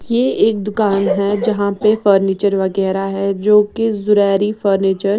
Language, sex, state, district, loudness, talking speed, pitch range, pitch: Hindi, female, Bihar, West Champaran, -15 LUFS, 150 wpm, 195-210 Hz, 200 Hz